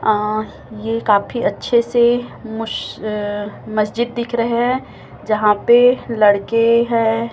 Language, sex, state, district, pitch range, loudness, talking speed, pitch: Hindi, female, Chhattisgarh, Raipur, 215-235 Hz, -17 LUFS, 115 wpm, 225 Hz